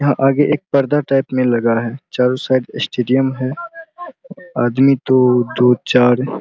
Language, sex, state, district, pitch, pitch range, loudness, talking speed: Hindi, male, Bihar, Araria, 130 Hz, 125-145 Hz, -15 LUFS, 160 wpm